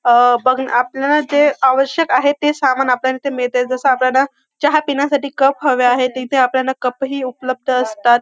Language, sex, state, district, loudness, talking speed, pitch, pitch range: Marathi, female, Maharashtra, Dhule, -15 LUFS, 190 wpm, 260 Hz, 255-280 Hz